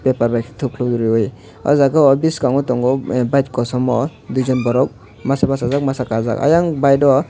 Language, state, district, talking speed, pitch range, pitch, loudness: Kokborok, Tripura, West Tripura, 180 wpm, 120-140 Hz, 130 Hz, -17 LUFS